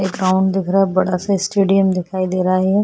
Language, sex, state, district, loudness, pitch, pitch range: Hindi, female, Goa, North and South Goa, -17 LUFS, 190 Hz, 185-195 Hz